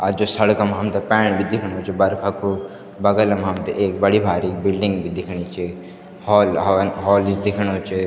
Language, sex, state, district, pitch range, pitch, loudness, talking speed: Garhwali, male, Uttarakhand, Tehri Garhwal, 95-105 Hz, 100 Hz, -19 LUFS, 200 wpm